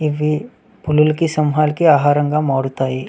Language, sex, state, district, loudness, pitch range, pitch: Telugu, male, Andhra Pradesh, Visakhapatnam, -16 LUFS, 145-155 Hz, 150 Hz